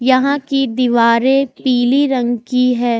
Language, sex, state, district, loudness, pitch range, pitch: Hindi, female, Jharkhand, Ranchi, -14 LUFS, 240-270 Hz, 250 Hz